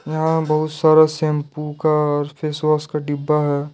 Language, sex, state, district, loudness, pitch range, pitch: Hindi, male, Jharkhand, Deoghar, -19 LUFS, 150-155 Hz, 150 Hz